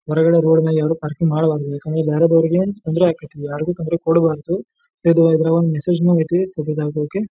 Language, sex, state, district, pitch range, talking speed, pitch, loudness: Kannada, male, Karnataka, Dharwad, 155-170 Hz, 155 wpm, 160 Hz, -18 LUFS